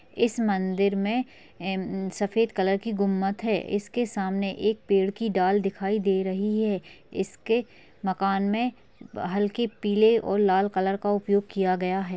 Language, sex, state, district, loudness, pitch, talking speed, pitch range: Hindi, female, Chhattisgarh, Sarguja, -26 LUFS, 200 Hz, 155 wpm, 190-215 Hz